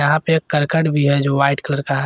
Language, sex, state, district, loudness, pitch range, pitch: Hindi, male, Jharkhand, Garhwa, -17 LUFS, 140-155 Hz, 145 Hz